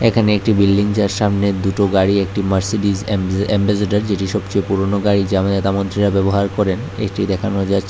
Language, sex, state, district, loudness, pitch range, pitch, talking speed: Bengali, male, Tripura, West Tripura, -17 LUFS, 95-105 Hz, 100 Hz, 190 wpm